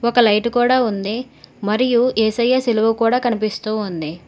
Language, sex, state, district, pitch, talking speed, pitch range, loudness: Telugu, female, Telangana, Hyderabad, 230 Hz, 140 wpm, 215-240 Hz, -18 LUFS